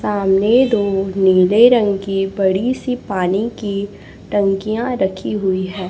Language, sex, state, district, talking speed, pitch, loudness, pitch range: Hindi, female, Chhattisgarh, Raipur, 130 wpm, 200 Hz, -16 LUFS, 190-220 Hz